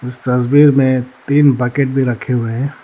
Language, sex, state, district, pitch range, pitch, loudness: Hindi, male, Arunachal Pradesh, Lower Dibang Valley, 125-140 Hz, 130 Hz, -14 LUFS